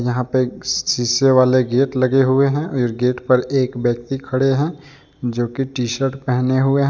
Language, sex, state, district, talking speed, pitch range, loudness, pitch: Hindi, male, Jharkhand, Deoghar, 175 wpm, 125-135 Hz, -18 LUFS, 130 Hz